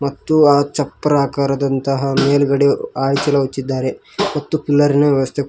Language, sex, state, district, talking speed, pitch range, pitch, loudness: Kannada, male, Karnataka, Koppal, 100 wpm, 135-145 Hz, 140 Hz, -16 LUFS